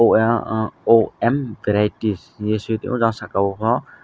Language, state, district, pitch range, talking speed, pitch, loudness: Kokborok, Tripura, West Tripura, 105-115 Hz, 150 wpm, 110 Hz, -20 LUFS